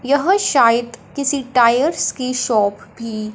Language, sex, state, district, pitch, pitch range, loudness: Hindi, male, Punjab, Fazilka, 250 Hz, 230-280 Hz, -17 LUFS